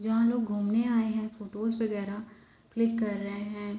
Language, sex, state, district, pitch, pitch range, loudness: Hindi, female, Bihar, East Champaran, 220 Hz, 205-230 Hz, -30 LUFS